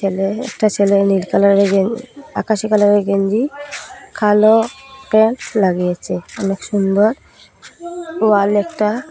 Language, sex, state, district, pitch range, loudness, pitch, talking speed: Bengali, female, Assam, Hailakandi, 200-230 Hz, -16 LUFS, 210 Hz, 110 wpm